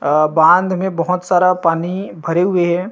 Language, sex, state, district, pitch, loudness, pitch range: Chhattisgarhi, male, Chhattisgarh, Rajnandgaon, 175 Hz, -15 LUFS, 165-185 Hz